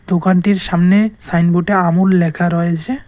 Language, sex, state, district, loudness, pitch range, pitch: Bengali, male, West Bengal, Cooch Behar, -14 LUFS, 170-190 Hz, 180 Hz